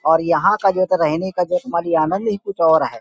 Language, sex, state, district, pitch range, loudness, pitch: Hindi, male, Uttar Pradesh, Hamirpur, 160-190 Hz, -18 LUFS, 170 Hz